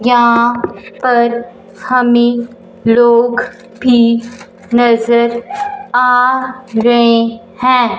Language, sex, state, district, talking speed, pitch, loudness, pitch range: Hindi, male, Punjab, Fazilka, 70 wpm, 240 Hz, -12 LUFS, 235-250 Hz